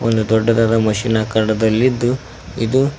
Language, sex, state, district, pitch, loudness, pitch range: Kannada, male, Karnataka, Koppal, 115 Hz, -16 LUFS, 110-120 Hz